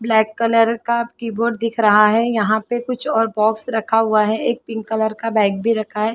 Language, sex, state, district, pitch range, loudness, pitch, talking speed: Hindi, female, Chhattisgarh, Bilaspur, 215-230 Hz, -18 LUFS, 225 Hz, 225 wpm